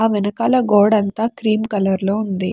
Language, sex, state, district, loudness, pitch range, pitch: Telugu, female, Andhra Pradesh, Chittoor, -17 LUFS, 200-225 Hz, 210 Hz